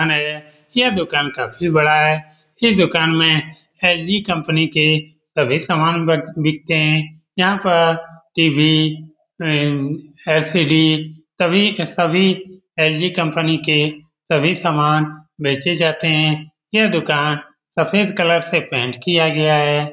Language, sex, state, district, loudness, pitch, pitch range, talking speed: Hindi, male, Bihar, Lakhisarai, -17 LUFS, 160 Hz, 155-170 Hz, 125 wpm